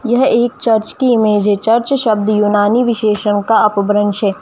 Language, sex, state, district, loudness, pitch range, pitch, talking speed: Hindi, female, Jharkhand, Jamtara, -13 LUFS, 205-235 Hz, 215 Hz, 175 wpm